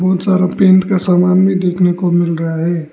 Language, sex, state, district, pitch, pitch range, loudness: Hindi, male, Arunachal Pradesh, Lower Dibang Valley, 180 Hz, 175-185 Hz, -13 LUFS